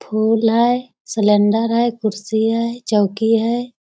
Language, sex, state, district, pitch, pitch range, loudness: Hindi, female, Bihar, Jamui, 225 Hz, 215-235 Hz, -17 LUFS